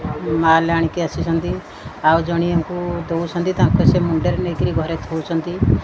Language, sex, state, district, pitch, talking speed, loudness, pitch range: Odia, female, Odisha, Khordha, 165 Hz, 135 wpm, -19 LUFS, 160-170 Hz